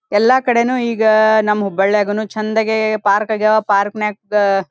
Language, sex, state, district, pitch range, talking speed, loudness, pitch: Kannada, female, Karnataka, Dharwad, 205-220 Hz, 140 wpm, -15 LUFS, 215 Hz